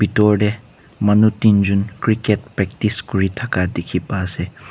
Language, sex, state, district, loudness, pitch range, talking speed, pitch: Nagamese, male, Nagaland, Kohima, -18 LUFS, 95-105 Hz, 140 wpm, 105 Hz